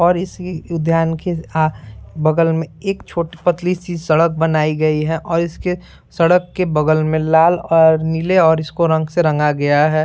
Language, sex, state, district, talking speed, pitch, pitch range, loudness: Hindi, male, Bihar, Saran, 185 wpm, 165 Hz, 155-175 Hz, -16 LUFS